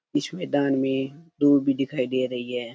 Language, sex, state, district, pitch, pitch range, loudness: Rajasthani, male, Rajasthan, Churu, 135 Hz, 125-140 Hz, -24 LUFS